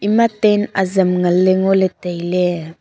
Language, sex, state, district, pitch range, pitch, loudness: Wancho, female, Arunachal Pradesh, Longding, 180-205 Hz, 185 Hz, -16 LUFS